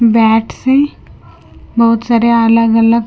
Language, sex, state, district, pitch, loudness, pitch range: Hindi, female, Punjab, Kapurthala, 230 Hz, -11 LUFS, 225-235 Hz